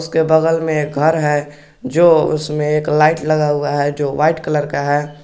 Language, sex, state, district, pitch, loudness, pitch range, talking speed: Hindi, male, Jharkhand, Garhwa, 150 Hz, -15 LUFS, 145-160 Hz, 205 wpm